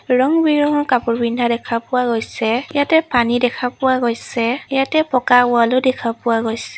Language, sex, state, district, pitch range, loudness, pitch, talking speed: Assamese, female, Assam, Sonitpur, 235-265 Hz, -17 LUFS, 250 Hz, 160 wpm